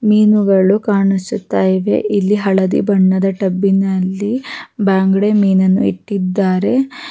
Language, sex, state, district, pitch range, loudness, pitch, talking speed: Kannada, female, Karnataka, Mysore, 190-210 Hz, -14 LUFS, 195 Hz, 95 wpm